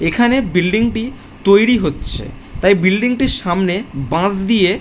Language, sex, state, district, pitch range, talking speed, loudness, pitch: Bengali, male, West Bengal, Jhargram, 185-235 Hz, 150 wpm, -15 LUFS, 200 Hz